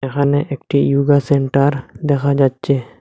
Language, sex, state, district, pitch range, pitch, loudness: Bengali, male, Assam, Hailakandi, 135-140 Hz, 140 Hz, -16 LUFS